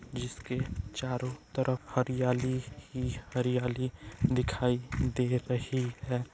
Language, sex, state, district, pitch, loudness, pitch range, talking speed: Hindi, male, Bihar, East Champaran, 125 Hz, -33 LUFS, 125-130 Hz, 95 wpm